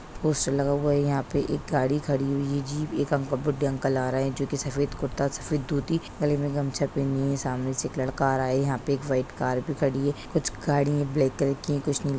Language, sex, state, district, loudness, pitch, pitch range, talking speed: Hindi, female, Bihar, Sitamarhi, -27 LUFS, 140 Hz, 135-145 Hz, 265 wpm